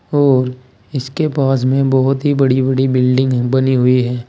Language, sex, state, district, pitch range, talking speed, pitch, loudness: Hindi, male, Uttar Pradesh, Saharanpur, 125-135 Hz, 170 wpm, 130 Hz, -14 LUFS